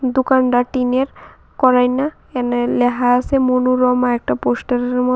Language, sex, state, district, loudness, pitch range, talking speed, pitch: Bengali, female, Tripura, West Tripura, -17 LUFS, 245-255 Hz, 105 wpm, 250 Hz